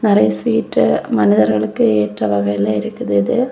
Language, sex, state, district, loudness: Tamil, female, Tamil Nadu, Kanyakumari, -16 LUFS